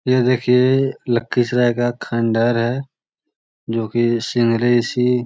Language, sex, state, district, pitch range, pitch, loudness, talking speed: Magahi, male, Bihar, Lakhisarai, 115-125 Hz, 120 Hz, -18 LUFS, 125 wpm